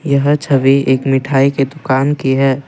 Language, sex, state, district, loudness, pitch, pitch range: Hindi, male, Assam, Kamrup Metropolitan, -13 LUFS, 135 Hz, 135-140 Hz